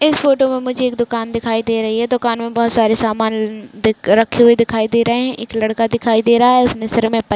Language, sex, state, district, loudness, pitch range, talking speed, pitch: Hindi, female, Chhattisgarh, Raigarh, -15 LUFS, 225-240 Hz, 250 wpm, 230 Hz